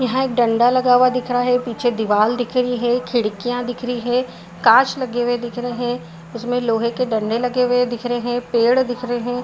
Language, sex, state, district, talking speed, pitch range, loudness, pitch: Hindi, female, Maharashtra, Aurangabad, 230 wpm, 240-250 Hz, -19 LUFS, 245 Hz